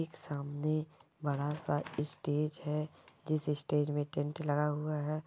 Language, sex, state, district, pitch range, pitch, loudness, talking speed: Hindi, female, Bihar, Jamui, 145-155 Hz, 150 Hz, -36 LUFS, 135 wpm